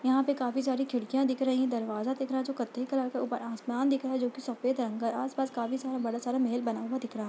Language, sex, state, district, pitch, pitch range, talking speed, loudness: Hindi, female, Uttar Pradesh, Budaun, 255 Hz, 240-265 Hz, 305 wpm, -31 LUFS